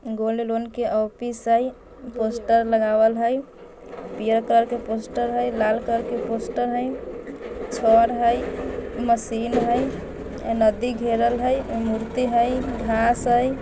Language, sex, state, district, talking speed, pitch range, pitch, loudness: Bajjika, female, Bihar, Vaishali, 115 wpm, 225-240 Hz, 235 Hz, -22 LUFS